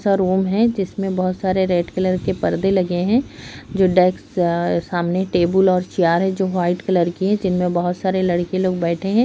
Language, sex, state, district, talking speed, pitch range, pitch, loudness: Hindi, female, Uttar Pradesh, Hamirpur, 200 wpm, 175-190 Hz, 185 Hz, -19 LUFS